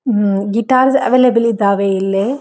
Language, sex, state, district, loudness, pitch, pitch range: Kannada, female, Karnataka, Dharwad, -14 LUFS, 230 Hz, 200-255 Hz